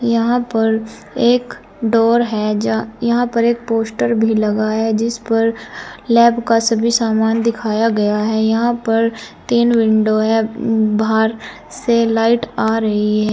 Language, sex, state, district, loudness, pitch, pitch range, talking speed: Hindi, female, Uttar Pradesh, Saharanpur, -16 LUFS, 225 Hz, 220-235 Hz, 145 wpm